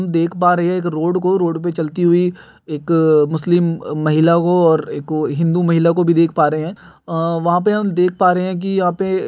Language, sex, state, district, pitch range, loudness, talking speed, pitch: Hindi, male, Uttar Pradesh, Gorakhpur, 165-180 Hz, -16 LUFS, 225 wpm, 170 Hz